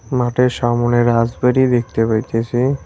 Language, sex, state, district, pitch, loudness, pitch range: Bengali, male, West Bengal, Cooch Behar, 120 Hz, -16 LUFS, 115-125 Hz